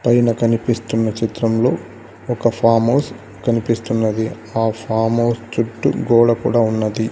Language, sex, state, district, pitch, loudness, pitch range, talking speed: Telugu, male, Andhra Pradesh, Sri Satya Sai, 115 Hz, -18 LUFS, 110-115 Hz, 120 wpm